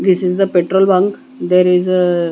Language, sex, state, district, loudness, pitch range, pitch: English, female, Punjab, Kapurthala, -14 LUFS, 180-190 Hz, 185 Hz